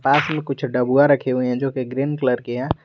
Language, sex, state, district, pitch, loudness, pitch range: Hindi, male, Jharkhand, Garhwa, 135 Hz, -20 LUFS, 125-140 Hz